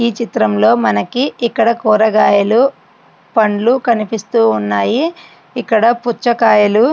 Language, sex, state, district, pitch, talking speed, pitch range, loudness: Telugu, female, Andhra Pradesh, Srikakulam, 230 Hz, 105 wpm, 215-240 Hz, -13 LUFS